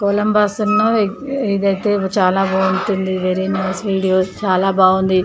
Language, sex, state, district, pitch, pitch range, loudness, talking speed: Telugu, female, Andhra Pradesh, Chittoor, 195 Hz, 190-205 Hz, -16 LUFS, 105 wpm